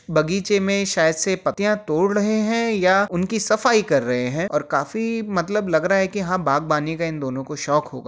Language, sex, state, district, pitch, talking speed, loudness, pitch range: Hindi, male, Uttar Pradesh, Jyotiba Phule Nagar, 190 Hz, 215 wpm, -20 LUFS, 155-210 Hz